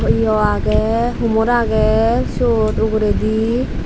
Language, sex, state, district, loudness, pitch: Chakma, female, Tripura, Dhalai, -16 LUFS, 220 Hz